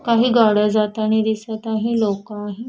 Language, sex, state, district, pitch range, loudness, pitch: Marathi, female, Maharashtra, Washim, 210-230 Hz, -18 LUFS, 220 Hz